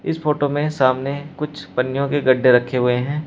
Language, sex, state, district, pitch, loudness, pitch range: Hindi, male, Uttar Pradesh, Shamli, 140 Hz, -19 LUFS, 125-150 Hz